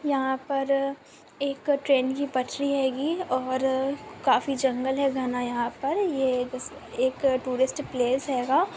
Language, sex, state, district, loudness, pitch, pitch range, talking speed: Hindi, female, Goa, North and South Goa, -26 LUFS, 265 Hz, 255-280 Hz, 135 wpm